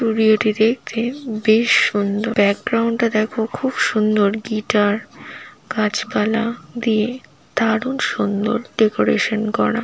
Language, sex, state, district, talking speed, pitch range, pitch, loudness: Bengali, female, West Bengal, Paschim Medinipur, 115 wpm, 215-230 Hz, 220 Hz, -19 LUFS